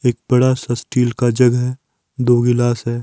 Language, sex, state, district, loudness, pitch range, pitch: Hindi, male, Himachal Pradesh, Shimla, -16 LUFS, 120-125 Hz, 125 Hz